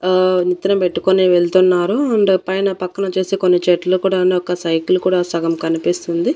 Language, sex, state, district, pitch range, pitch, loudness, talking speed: Telugu, female, Andhra Pradesh, Annamaya, 175-190 Hz, 185 Hz, -16 LUFS, 160 wpm